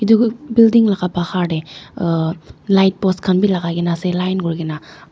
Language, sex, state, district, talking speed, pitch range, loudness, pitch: Nagamese, female, Nagaland, Dimapur, 175 wpm, 165-195 Hz, -17 LUFS, 180 Hz